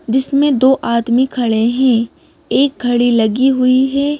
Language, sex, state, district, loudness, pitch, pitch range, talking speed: Hindi, female, Madhya Pradesh, Bhopal, -14 LUFS, 260 Hz, 240-275 Hz, 145 wpm